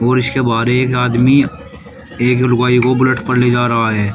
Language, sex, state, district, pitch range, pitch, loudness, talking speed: Hindi, male, Uttar Pradesh, Shamli, 120-130 Hz, 125 Hz, -13 LUFS, 205 wpm